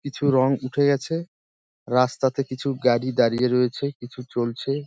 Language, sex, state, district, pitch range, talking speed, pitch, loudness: Bengali, male, West Bengal, Dakshin Dinajpur, 120-140 Hz, 145 wpm, 130 Hz, -23 LUFS